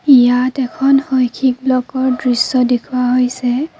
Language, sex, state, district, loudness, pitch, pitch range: Assamese, female, Assam, Kamrup Metropolitan, -14 LUFS, 255 Hz, 250-265 Hz